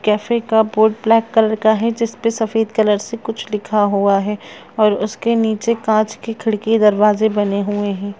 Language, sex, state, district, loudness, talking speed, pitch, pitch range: Hindi, female, Chhattisgarh, Raigarh, -17 LUFS, 185 wpm, 220 Hz, 210-225 Hz